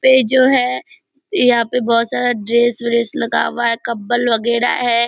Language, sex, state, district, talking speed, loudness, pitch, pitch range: Hindi, female, Bihar, Purnia, 190 wpm, -15 LUFS, 240 Hz, 235-250 Hz